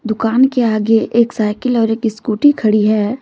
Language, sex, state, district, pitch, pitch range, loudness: Hindi, female, Jharkhand, Deoghar, 225 Hz, 215-240 Hz, -14 LUFS